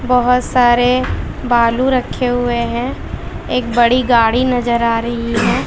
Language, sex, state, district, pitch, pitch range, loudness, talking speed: Hindi, female, Bihar, West Champaran, 245 Hz, 235-250 Hz, -15 LUFS, 140 wpm